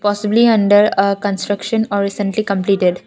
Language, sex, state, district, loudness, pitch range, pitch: English, female, Assam, Kamrup Metropolitan, -15 LUFS, 200-210 Hz, 205 Hz